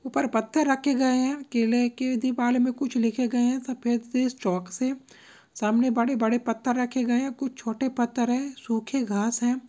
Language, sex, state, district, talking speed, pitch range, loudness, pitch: Maithili, female, Bihar, Begusarai, 185 wpm, 235-260 Hz, -26 LUFS, 250 Hz